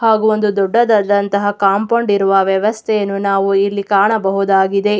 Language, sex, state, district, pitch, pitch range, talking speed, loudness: Kannada, female, Karnataka, Mysore, 200 Hz, 195-215 Hz, 110 wpm, -14 LUFS